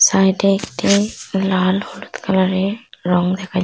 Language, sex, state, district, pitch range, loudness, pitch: Bengali, female, West Bengal, Purulia, 185-195 Hz, -18 LUFS, 190 Hz